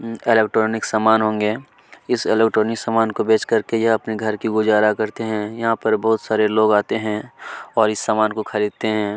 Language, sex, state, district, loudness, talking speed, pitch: Hindi, male, Chhattisgarh, Kabirdham, -19 LUFS, 190 wpm, 110 Hz